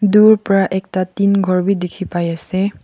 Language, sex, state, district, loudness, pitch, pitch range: Nagamese, female, Nagaland, Kohima, -16 LUFS, 190 Hz, 180-200 Hz